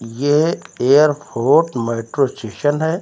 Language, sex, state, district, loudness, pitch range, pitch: Hindi, male, Uttar Pradesh, Lucknow, -17 LUFS, 125-155 Hz, 145 Hz